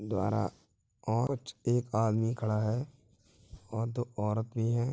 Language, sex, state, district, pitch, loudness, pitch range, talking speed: Hindi, male, Uttar Pradesh, Hamirpur, 115 Hz, -33 LUFS, 105-120 Hz, 135 wpm